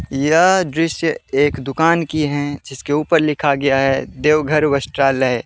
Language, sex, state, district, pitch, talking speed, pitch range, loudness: Hindi, male, Jharkhand, Deoghar, 145 Hz, 145 wpm, 135-160 Hz, -17 LUFS